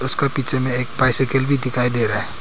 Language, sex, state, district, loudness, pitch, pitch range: Hindi, male, Arunachal Pradesh, Papum Pare, -17 LUFS, 130 Hz, 125-135 Hz